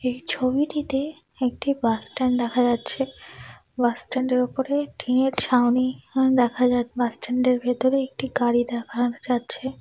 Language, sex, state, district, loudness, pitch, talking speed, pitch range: Bengali, female, West Bengal, Dakshin Dinajpur, -23 LUFS, 250 Hz, 155 wpm, 245-265 Hz